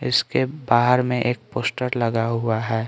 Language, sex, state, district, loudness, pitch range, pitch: Hindi, male, Bihar, Patna, -21 LUFS, 115-125 Hz, 120 Hz